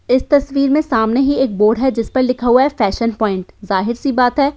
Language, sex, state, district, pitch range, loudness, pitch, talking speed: Hindi, female, Uttar Pradesh, Hamirpur, 220-270 Hz, -15 LUFS, 250 Hz, 265 wpm